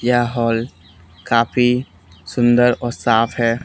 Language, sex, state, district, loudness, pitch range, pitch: Hindi, male, Haryana, Charkhi Dadri, -17 LUFS, 95-120 Hz, 115 Hz